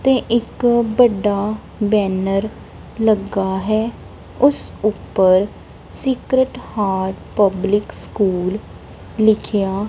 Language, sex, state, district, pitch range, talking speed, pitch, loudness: Punjabi, female, Punjab, Kapurthala, 195-230 Hz, 80 wpm, 210 Hz, -18 LUFS